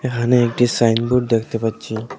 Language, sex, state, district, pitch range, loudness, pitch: Bengali, male, Assam, Hailakandi, 115-125 Hz, -18 LUFS, 120 Hz